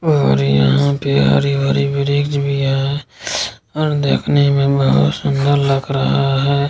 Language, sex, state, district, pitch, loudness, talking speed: Hindi, male, Bihar, Kishanganj, 115 Hz, -16 LUFS, 135 wpm